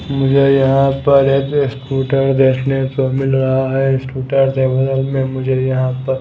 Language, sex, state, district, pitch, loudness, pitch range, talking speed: Hindi, male, Chhattisgarh, Raipur, 135 Hz, -15 LUFS, 130-135 Hz, 145 wpm